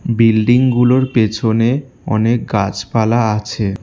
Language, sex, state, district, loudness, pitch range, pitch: Bengali, male, West Bengal, Alipurduar, -15 LUFS, 110-125 Hz, 115 Hz